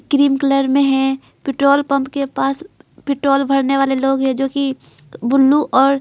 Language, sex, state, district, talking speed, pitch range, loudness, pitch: Hindi, female, Bihar, Patna, 160 wpm, 270-280 Hz, -16 LUFS, 275 Hz